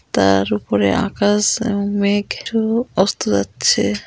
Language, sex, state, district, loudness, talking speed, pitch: Bengali, female, West Bengal, Dakshin Dinajpur, -17 LUFS, 105 wpm, 200 Hz